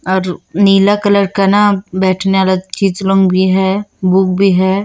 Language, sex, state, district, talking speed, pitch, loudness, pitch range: Hindi, female, Chhattisgarh, Raipur, 150 wpm, 190 Hz, -12 LUFS, 185-195 Hz